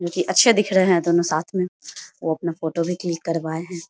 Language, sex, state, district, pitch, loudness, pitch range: Hindi, female, Bihar, Samastipur, 170 Hz, -21 LUFS, 165-180 Hz